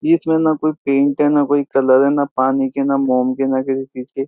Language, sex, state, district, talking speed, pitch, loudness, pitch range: Hindi, male, Uttar Pradesh, Jyotiba Phule Nagar, 295 wpm, 140 Hz, -16 LUFS, 135-145 Hz